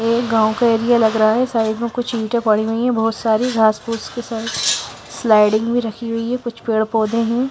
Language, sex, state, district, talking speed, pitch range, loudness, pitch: Hindi, female, Bihar, West Champaran, 225 wpm, 220-235 Hz, -18 LUFS, 230 Hz